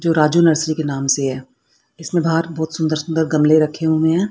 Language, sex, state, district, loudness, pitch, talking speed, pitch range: Hindi, female, Haryana, Rohtak, -17 LUFS, 160 Hz, 225 wpm, 150-165 Hz